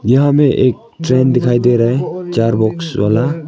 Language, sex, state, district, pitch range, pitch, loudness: Hindi, male, Arunachal Pradesh, Longding, 115-145 Hz, 130 Hz, -14 LUFS